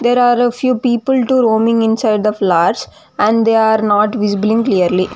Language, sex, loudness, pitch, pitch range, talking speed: English, female, -13 LUFS, 225 Hz, 210-245 Hz, 185 wpm